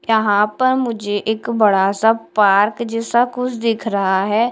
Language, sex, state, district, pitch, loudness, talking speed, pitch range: Hindi, female, Delhi, New Delhi, 220 Hz, -17 LUFS, 160 wpm, 205-235 Hz